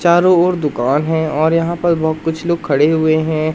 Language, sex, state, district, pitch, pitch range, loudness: Hindi, male, Madhya Pradesh, Katni, 160 Hz, 155-170 Hz, -15 LUFS